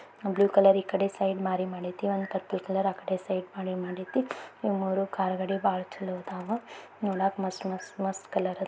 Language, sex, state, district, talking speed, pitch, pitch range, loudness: Kannada, female, Karnataka, Belgaum, 180 wpm, 190 Hz, 185-195 Hz, -30 LUFS